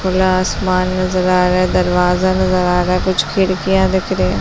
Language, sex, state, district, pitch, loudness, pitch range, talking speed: Hindi, female, Chhattisgarh, Balrampur, 185 Hz, -15 LUFS, 180-185 Hz, 230 wpm